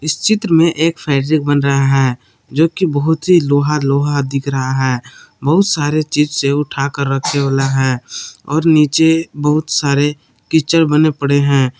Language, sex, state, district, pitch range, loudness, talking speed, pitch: Hindi, male, Jharkhand, Palamu, 135-155 Hz, -14 LUFS, 170 wpm, 145 Hz